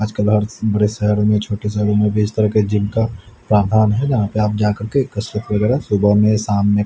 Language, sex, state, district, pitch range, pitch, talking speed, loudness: Hindi, male, Haryana, Rohtak, 105-110 Hz, 105 Hz, 255 wpm, -17 LUFS